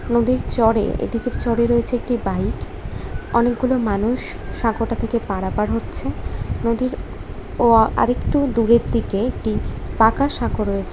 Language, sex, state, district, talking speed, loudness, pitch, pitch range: Bengali, female, West Bengal, Dakshin Dinajpur, 120 wpm, -20 LUFS, 230 Hz, 205-240 Hz